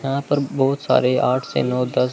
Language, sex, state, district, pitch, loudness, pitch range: Hindi, male, Chandigarh, Chandigarh, 135 Hz, -20 LUFS, 125-140 Hz